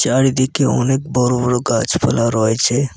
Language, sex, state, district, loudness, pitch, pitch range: Bengali, male, West Bengal, Cooch Behar, -16 LUFS, 125 Hz, 120-135 Hz